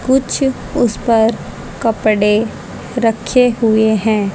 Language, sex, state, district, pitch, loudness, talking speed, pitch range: Hindi, female, Haryana, Jhajjar, 225 Hz, -15 LUFS, 95 wpm, 215-245 Hz